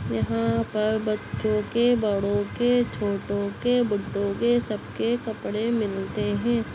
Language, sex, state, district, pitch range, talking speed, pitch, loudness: Hindi, female, Bihar, Begusarai, 200-235 Hz, 125 wpm, 210 Hz, -25 LUFS